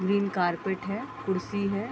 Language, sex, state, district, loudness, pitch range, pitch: Hindi, female, Bihar, Gopalganj, -29 LUFS, 190-205 Hz, 200 Hz